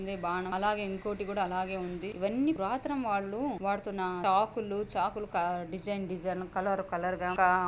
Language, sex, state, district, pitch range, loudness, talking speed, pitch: Telugu, female, Andhra Pradesh, Anantapur, 185-205 Hz, -32 LUFS, 180 wpm, 195 Hz